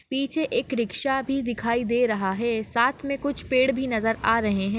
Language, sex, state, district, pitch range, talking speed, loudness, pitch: Hindi, female, Maharashtra, Nagpur, 225-270 Hz, 210 wpm, -24 LUFS, 240 Hz